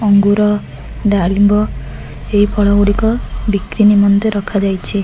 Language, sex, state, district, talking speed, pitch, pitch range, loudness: Odia, female, Odisha, Khordha, 105 wpm, 205 Hz, 200-210 Hz, -14 LUFS